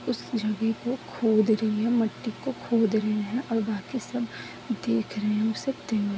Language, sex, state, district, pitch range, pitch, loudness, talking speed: Hindi, female, Chhattisgarh, Balrampur, 210-230 Hz, 220 Hz, -27 LUFS, 185 wpm